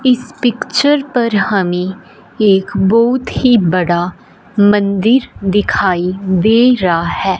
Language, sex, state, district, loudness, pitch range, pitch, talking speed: Hindi, female, Punjab, Fazilka, -13 LUFS, 190-240 Hz, 205 Hz, 105 wpm